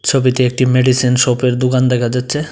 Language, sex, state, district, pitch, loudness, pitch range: Bengali, male, Tripura, Dhalai, 125 Hz, -14 LUFS, 125-130 Hz